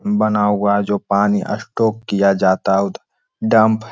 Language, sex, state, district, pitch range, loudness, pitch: Hindi, male, Jharkhand, Sahebganj, 100-110 Hz, -17 LUFS, 105 Hz